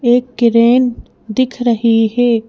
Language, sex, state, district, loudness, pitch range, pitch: Hindi, female, Madhya Pradesh, Bhopal, -13 LUFS, 230-245 Hz, 240 Hz